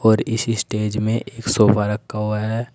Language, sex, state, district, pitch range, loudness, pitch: Hindi, male, Uttar Pradesh, Saharanpur, 105-115 Hz, -20 LUFS, 110 Hz